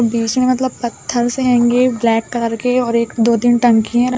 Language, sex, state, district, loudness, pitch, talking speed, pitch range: Hindi, female, Uttar Pradesh, Budaun, -15 LUFS, 240 Hz, 215 wpm, 230-250 Hz